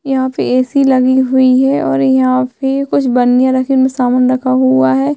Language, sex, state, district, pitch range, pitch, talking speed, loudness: Hindi, female, Chhattisgarh, Sukma, 255-265 Hz, 260 Hz, 195 wpm, -12 LUFS